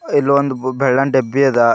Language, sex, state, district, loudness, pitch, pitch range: Kannada, male, Karnataka, Bidar, -15 LUFS, 135 Hz, 130-140 Hz